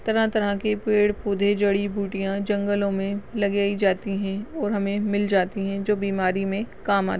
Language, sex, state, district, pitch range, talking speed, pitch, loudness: Hindi, female, Maharashtra, Chandrapur, 195-205 Hz, 350 wpm, 200 Hz, -24 LUFS